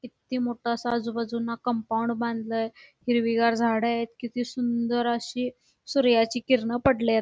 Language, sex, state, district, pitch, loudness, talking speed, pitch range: Marathi, female, Karnataka, Belgaum, 235 Hz, -26 LUFS, 125 wpm, 230-245 Hz